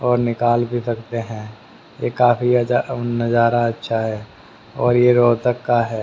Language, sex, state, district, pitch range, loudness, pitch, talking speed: Hindi, male, Haryana, Rohtak, 115-120 Hz, -18 LUFS, 120 Hz, 160 wpm